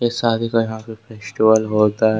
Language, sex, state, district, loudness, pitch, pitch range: Hindi, male, Jharkhand, Deoghar, -17 LUFS, 110 Hz, 110-115 Hz